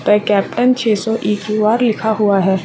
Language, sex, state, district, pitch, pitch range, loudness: Hindi, female, Jharkhand, Sahebganj, 215 Hz, 205-225 Hz, -15 LUFS